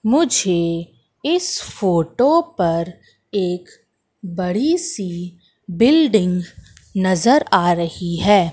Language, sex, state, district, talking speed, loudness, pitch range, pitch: Hindi, female, Madhya Pradesh, Katni, 85 wpm, -18 LUFS, 175-260 Hz, 190 Hz